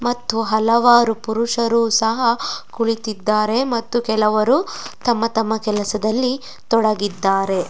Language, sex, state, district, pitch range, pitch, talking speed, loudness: Kannada, female, Karnataka, Dakshina Kannada, 215-235 Hz, 225 Hz, 80 wpm, -18 LUFS